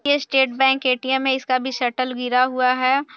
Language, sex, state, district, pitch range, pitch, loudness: Hindi, female, Bihar, Saharsa, 255-265 Hz, 260 Hz, -19 LUFS